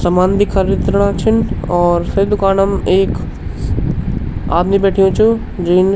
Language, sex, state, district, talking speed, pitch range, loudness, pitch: Garhwali, male, Uttarakhand, Tehri Garhwal, 130 wpm, 175-200 Hz, -14 LUFS, 195 Hz